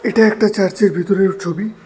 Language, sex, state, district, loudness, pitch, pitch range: Bengali, male, Tripura, West Tripura, -16 LUFS, 200 Hz, 190-215 Hz